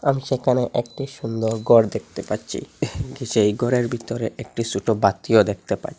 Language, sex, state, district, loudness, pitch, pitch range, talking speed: Bengali, male, Assam, Hailakandi, -22 LUFS, 115 Hz, 110-125 Hz, 150 wpm